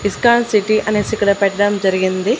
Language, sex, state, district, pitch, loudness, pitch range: Telugu, female, Andhra Pradesh, Annamaya, 205 Hz, -15 LUFS, 200-215 Hz